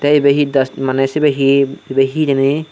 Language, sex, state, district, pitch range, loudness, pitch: Chakma, male, Tripura, Dhalai, 135-145 Hz, -14 LUFS, 140 Hz